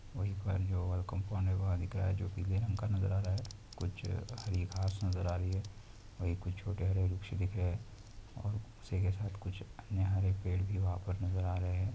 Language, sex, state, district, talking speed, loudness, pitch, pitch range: Hindi, male, Chhattisgarh, Jashpur, 250 wpm, -37 LUFS, 95 Hz, 95-100 Hz